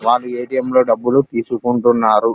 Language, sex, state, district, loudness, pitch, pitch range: Telugu, male, Andhra Pradesh, Krishna, -16 LUFS, 120 Hz, 115-130 Hz